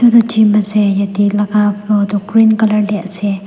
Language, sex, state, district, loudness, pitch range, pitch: Nagamese, female, Nagaland, Dimapur, -13 LUFS, 205-215 Hz, 210 Hz